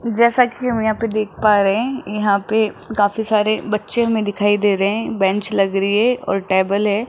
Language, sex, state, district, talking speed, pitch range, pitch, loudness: Hindi, male, Rajasthan, Jaipur, 205 wpm, 205-225 Hz, 210 Hz, -17 LUFS